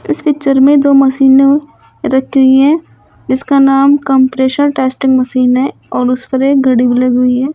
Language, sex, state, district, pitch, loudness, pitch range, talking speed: Hindi, female, Uttar Pradesh, Shamli, 270 Hz, -10 LUFS, 260-280 Hz, 185 wpm